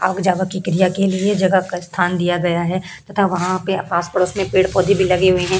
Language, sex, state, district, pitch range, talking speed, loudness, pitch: Hindi, female, Uttar Pradesh, Hamirpur, 180-190 Hz, 225 wpm, -17 LUFS, 185 Hz